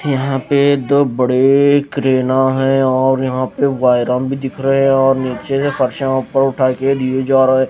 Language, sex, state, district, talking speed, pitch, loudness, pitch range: Hindi, female, Punjab, Fazilka, 185 wpm, 135 Hz, -14 LUFS, 130-135 Hz